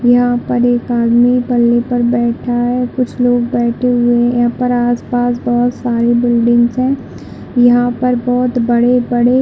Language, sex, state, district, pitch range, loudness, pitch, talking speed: Hindi, female, Chhattisgarh, Bilaspur, 240-245 Hz, -13 LUFS, 245 Hz, 165 wpm